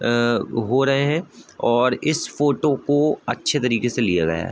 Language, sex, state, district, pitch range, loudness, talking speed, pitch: Hindi, male, Uttar Pradesh, Budaun, 120-145 Hz, -20 LUFS, 200 wpm, 130 Hz